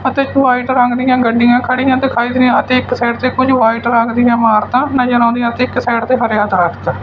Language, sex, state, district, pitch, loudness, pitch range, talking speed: Punjabi, male, Punjab, Fazilka, 245 Hz, -12 LUFS, 235-255 Hz, 215 wpm